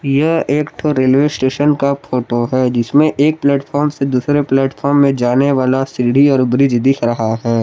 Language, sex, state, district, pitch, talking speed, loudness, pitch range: Hindi, male, Jharkhand, Palamu, 135 Hz, 180 wpm, -14 LUFS, 125-145 Hz